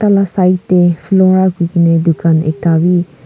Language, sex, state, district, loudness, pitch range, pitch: Nagamese, female, Nagaland, Kohima, -12 LUFS, 165-185 Hz, 175 Hz